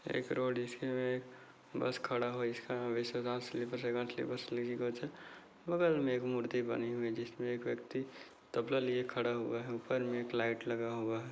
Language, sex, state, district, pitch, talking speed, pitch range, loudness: Hindi, male, Chhattisgarh, Bastar, 120 Hz, 150 wpm, 120-125 Hz, -38 LUFS